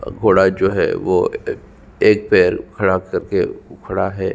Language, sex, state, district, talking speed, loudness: Hindi, male, Chhattisgarh, Sukma, 150 wpm, -17 LUFS